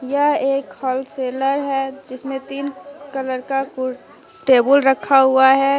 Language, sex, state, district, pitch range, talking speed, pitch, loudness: Hindi, female, Jharkhand, Deoghar, 265-280 Hz, 135 wpm, 270 Hz, -18 LUFS